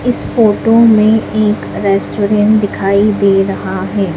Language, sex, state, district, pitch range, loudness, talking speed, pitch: Hindi, female, Madhya Pradesh, Dhar, 200-220 Hz, -12 LUFS, 130 wpm, 210 Hz